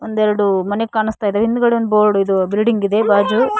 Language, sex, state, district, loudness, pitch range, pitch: Kannada, female, Karnataka, Koppal, -16 LUFS, 205-225 Hz, 210 Hz